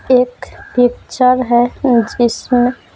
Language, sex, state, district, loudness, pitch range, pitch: Hindi, female, Bihar, Patna, -14 LUFS, 240-250 Hz, 245 Hz